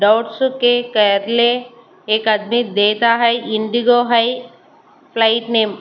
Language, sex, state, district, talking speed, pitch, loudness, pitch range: Hindi, female, Haryana, Charkhi Dadri, 95 wpm, 230 Hz, -15 LUFS, 215-240 Hz